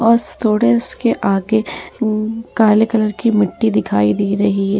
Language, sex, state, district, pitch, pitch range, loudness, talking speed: Hindi, female, Bihar, Vaishali, 215 Hz, 200-225 Hz, -16 LUFS, 175 wpm